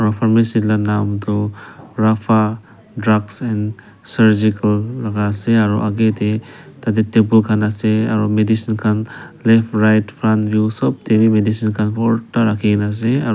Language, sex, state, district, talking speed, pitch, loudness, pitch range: Nagamese, male, Nagaland, Dimapur, 150 wpm, 110 Hz, -16 LUFS, 105-110 Hz